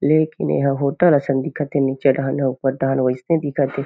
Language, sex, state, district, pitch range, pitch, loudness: Chhattisgarhi, male, Chhattisgarh, Kabirdham, 135-145 Hz, 140 Hz, -19 LUFS